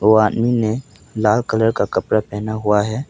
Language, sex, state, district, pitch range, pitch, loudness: Hindi, male, Arunachal Pradesh, Papum Pare, 105-115 Hz, 110 Hz, -18 LUFS